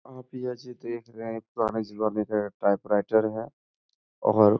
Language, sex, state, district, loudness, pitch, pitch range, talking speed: Hindi, male, Uttar Pradesh, Etah, -27 LUFS, 110 Hz, 105-120 Hz, 170 wpm